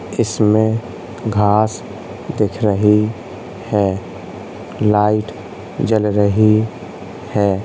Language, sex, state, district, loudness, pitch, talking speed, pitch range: Hindi, male, Uttar Pradesh, Hamirpur, -17 LUFS, 105 Hz, 70 wpm, 100-110 Hz